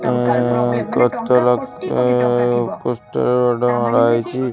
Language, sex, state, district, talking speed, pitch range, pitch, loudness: Odia, male, Odisha, Khordha, 95 wpm, 120-125 Hz, 120 Hz, -17 LUFS